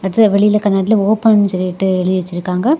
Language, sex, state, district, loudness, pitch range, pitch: Tamil, female, Tamil Nadu, Kanyakumari, -14 LUFS, 185-215 Hz, 200 Hz